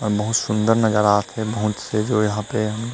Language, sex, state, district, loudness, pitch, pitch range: Chhattisgarhi, male, Chhattisgarh, Rajnandgaon, -20 LUFS, 105 Hz, 105-110 Hz